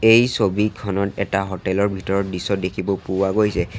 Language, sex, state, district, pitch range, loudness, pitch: Assamese, male, Assam, Sonitpur, 95-105 Hz, -21 LUFS, 100 Hz